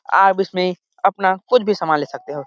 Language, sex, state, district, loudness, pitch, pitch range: Hindi, male, Chhattisgarh, Sarguja, -18 LUFS, 185 Hz, 155-195 Hz